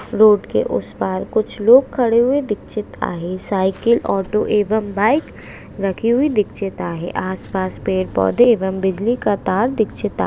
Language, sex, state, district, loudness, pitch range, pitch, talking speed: Hindi, female, Maharashtra, Aurangabad, -18 LUFS, 190-235 Hz, 210 Hz, 160 wpm